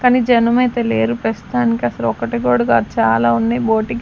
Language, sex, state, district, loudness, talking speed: Telugu, female, Andhra Pradesh, Sri Satya Sai, -16 LUFS, 195 wpm